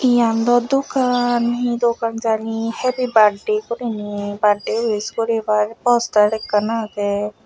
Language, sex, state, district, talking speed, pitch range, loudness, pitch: Chakma, female, Tripura, West Tripura, 120 wpm, 210-240 Hz, -19 LUFS, 225 Hz